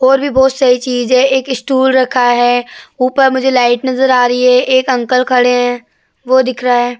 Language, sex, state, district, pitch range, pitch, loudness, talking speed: Hindi, female, Uttar Pradesh, Jyotiba Phule Nagar, 245-260 Hz, 255 Hz, -11 LUFS, 215 wpm